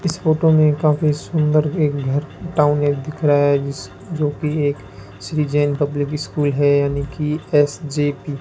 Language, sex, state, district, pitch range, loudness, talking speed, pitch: Hindi, male, Rajasthan, Bikaner, 145-150 Hz, -19 LUFS, 170 wpm, 145 Hz